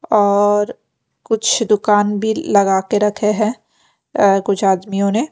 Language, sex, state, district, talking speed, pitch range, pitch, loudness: Hindi, female, Punjab, Pathankot, 145 wpm, 200-215 Hz, 205 Hz, -16 LUFS